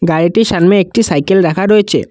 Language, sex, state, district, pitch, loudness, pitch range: Bengali, male, Assam, Kamrup Metropolitan, 190 Hz, -11 LUFS, 170-205 Hz